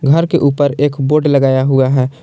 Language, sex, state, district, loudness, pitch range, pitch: Hindi, male, Jharkhand, Palamu, -13 LUFS, 135-150 Hz, 140 Hz